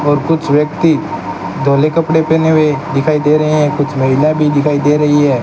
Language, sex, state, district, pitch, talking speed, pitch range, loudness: Hindi, male, Rajasthan, Bikaner, 150 Hz, 200 wpm, 145-155 Hz, -12 LUFS